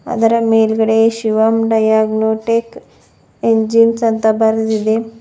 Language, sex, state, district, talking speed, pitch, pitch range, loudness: Kannada, female, Karnataka, Bidar, 80 wpm, 225 Hz, 220-230 Hz, -14 LUFS